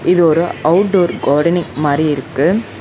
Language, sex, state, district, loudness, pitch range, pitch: Tamil, female, Tamil Nadu, Chennai, -14 LUFS, 145-175 Hz, 165 Hz